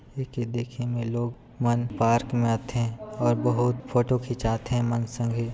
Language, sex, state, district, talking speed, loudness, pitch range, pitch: Chhattisgarhi, male, Chhattisgarh, Sarguja, 175 wpm, -27 LUFS, 115-120 Hz, 120 Hz